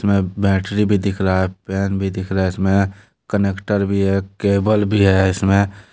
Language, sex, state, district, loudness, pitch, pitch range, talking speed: Hindi, male, Jharkhand, Deoghar, -18 LUFS, 100 Hz, 95-100 Hz, 190 wpm